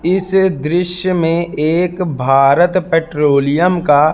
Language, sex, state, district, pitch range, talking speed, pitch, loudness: Hindi, male, Madhya Pradesh, Katni, 150-180 Hz, 100 wpm, 170 Hz, -14 LUFS